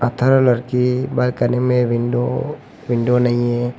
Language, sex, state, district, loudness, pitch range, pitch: Hindi, male, Arunachal Pradesh, Papum Pare, -17 LUFS, 120-125 Hz, 125 Hz